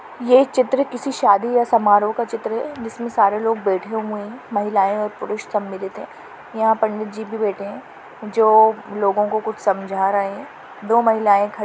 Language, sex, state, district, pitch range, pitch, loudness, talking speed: Hindi, female, Maharashtra, Nagpur, 205-230 Hz, 215 Hz, -19 LUFS, 185 wpm